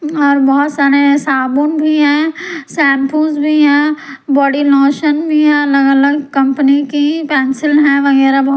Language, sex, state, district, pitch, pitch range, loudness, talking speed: Hindi, female, Punjab, Pathankot, 285 Hz, 275-300 Hz, -11 LUFS, 145 wpm